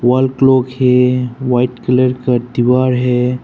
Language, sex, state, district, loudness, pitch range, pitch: Hindi, male, Arunachal Pradesh, Papum Pare, -13 LUFS, 125-130 Hz, 125 Hz